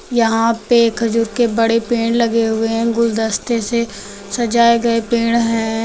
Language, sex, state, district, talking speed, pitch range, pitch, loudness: Hindi, female, Uttar Pradesh, Lucknow, 155 wpm, 225-235 Hz, 230 Hz, -16 LUFS